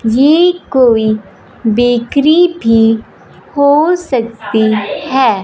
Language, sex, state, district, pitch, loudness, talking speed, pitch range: Hindi, female, Punjab, Fazilka, 245 Hz, -11 LUFS, 75 wpm, 225-290 Hz